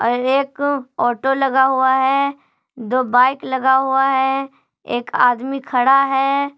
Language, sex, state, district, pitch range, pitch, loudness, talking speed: Hindi, female, Jharkhand, Palamu, 255-275 Hz, 265 Hz, -17 LUFS, 130 wpm